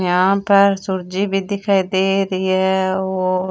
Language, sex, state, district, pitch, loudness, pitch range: Rajasthani, female, Rajasthan, Churu, 190 Hz, -17 LUFS, 185-195 Hz